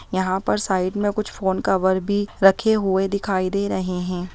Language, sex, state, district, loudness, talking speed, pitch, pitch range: Hindi, female, Bihar, Begusarai, -21 LUFS, 195 wpm, 190 Hz, 185-205 Hz